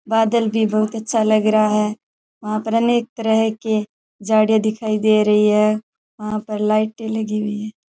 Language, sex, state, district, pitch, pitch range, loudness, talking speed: Rajasthani, male, Rajasthan, Churu, 215 Hz, 215-220 Hz, -18 LUFS, 175 wpm